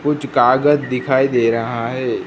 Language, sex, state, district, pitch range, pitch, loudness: Hindi, male, Gujarat, Gandhinagar, 120-140 Hz, 130 Hz, -16 LUFS